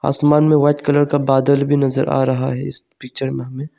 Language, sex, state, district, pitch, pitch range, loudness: Hindi, male, Arunachal Pradesh, Longding, 140 Hz, 135-145 Hz, -16 LUFS